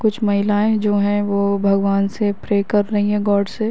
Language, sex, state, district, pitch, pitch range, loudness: Hindi, female, Uttar Pradesh, Varanasi, 205 Hz, 200-210 Hz, -18 LUFS